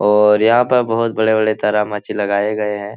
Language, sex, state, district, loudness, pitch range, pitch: Hindi, male, Bihar, Jahanabad, -15 LUFS, 105-110 Hz, 105 Hz